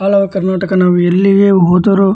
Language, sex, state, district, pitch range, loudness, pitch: Kannada, male, Karnataka, Dharwad, 185-195 Hz, -11 LUFS, 190 Hz